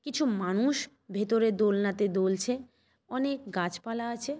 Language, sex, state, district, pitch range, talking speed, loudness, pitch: Bengali, female, West Bengal, Malda, 200-260 Hz, 110 wpm, -30 LUFS, 230 Hz